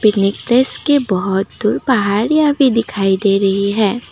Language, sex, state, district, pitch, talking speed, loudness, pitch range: Hindi, female, Assam, Kamrup Metropolitan, 215 Hz, 130 wpm, -15 LUFS, 195-255 Hz